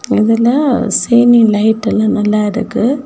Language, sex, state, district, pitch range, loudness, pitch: Tamil, female, Tamil Nadu, Kanyakumari, 215-240 Hz, -12 LUFS, 225 Hz